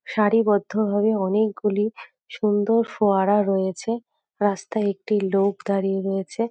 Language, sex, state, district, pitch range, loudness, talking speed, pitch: Bengali, female, West Bengal, North 24 Parganas, 195-220 Hz, -22 LUFS, 110 wpm, 205 Hz